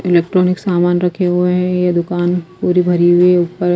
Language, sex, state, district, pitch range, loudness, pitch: Hindi, female, Himachal Pradesh, Shimla, 175-180 Hz, -14 LUFS, 180 Hz